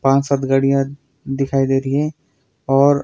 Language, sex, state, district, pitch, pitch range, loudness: Hindi, male, Himachal Pradesh, Shimla, 135 Hz, 135-140 Hz, -18 LUFS